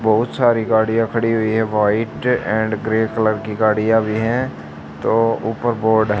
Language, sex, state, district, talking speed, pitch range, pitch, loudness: Hindi, male, Haryana, Charkhi Dadri, 175 wpm, 110-115 Hz, 110 Hz, -18 LUFS